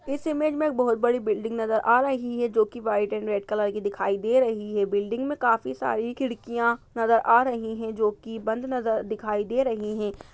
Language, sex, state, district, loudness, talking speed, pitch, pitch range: Hindi, female, Uttar Pradesh, Budaun, -25 LUFS, 215 wpm, 225 Hz, 215-240 Hz